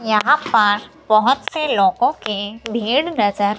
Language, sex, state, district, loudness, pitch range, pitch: Hindi, female, Himachal Pradesh, Shimla, -17 LUFS, 205-295 Hz, 220 Hz